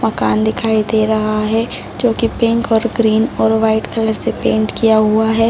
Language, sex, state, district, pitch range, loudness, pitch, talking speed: Hindi, female, Bihar, Sitamarhi, 215-225 Hz, -15 LUFS, 220 Hz, 195 wpm